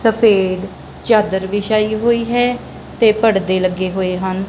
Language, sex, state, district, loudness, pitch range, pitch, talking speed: Punjabi, female, Punjab, Kapurthala, -16 LUFS, 190-225 Hz, 210 Hz, 135 wpm